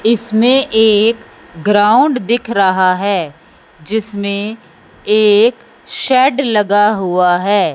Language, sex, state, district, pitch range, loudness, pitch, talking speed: Hindi, male, Punjab, Fazilka, 200-230 Hz, -13 LUFS, 210 Hz, 95 wpm